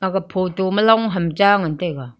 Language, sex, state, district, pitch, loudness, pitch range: Wancho, female, Arunachal Pradesh, Longding, 190 Hz, -18 LUFS, 170-200 Hz